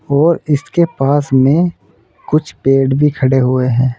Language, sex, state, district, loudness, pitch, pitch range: Hindi, male, Uttar Pradesh, Saharanpur, -13 LUFS, 140 Hz, 130-155 Hz